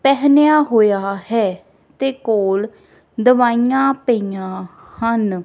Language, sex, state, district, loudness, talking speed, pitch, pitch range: Punjabi, female, Punjab, Kapurthala, -16 LUFS, 90 wpm, 230 Hz, 195-265 Hz